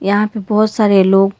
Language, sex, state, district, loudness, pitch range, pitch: Hindi, female, Karnataka, Bangalore, -13 LUFS, 195-215 Hz, 210 Hz